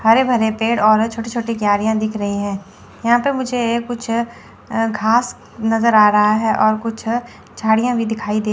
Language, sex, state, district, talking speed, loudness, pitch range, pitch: Hindi, female, Chandigarh, Chandigarh, 175 wpm, -17 LUFS, 215-235 Hz, 225 Hz